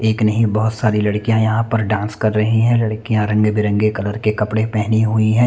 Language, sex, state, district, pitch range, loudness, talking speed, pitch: Hindi, male, Chandigarh, Chandigarh, 105-110 Hz, -17 LUFS, 210 wpm, 110 Hz